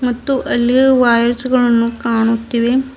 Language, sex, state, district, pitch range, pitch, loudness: Kannada, female, Karnataka, Bidar, 235-255 Hz, 240 Hz, -14 LUFS